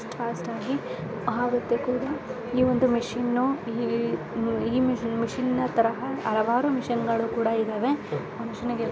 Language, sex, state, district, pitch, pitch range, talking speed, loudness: Kannada, female, Karnataka, Dharwad, 235 Hz, 230-250 Hz, 140 wpm, -26 LUFS